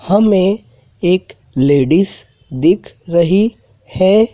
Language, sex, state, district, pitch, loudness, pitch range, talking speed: Hindi, male, Madhya Pradesh, Dhar, 180 Hz, -14 LUFS, 140-200 Hz, 85 wpm